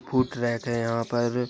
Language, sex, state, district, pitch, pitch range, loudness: Hindi, male, Maharashtra, Pune, 120 Hz, 115-125 Hz, -27 LUFS